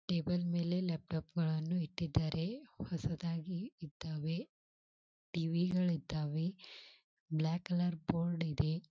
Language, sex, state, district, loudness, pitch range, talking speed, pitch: Kannada, female, Karnataka, Belgaum, -38 LUFS, 160-175 Hz, 95 wpm, 170 Hz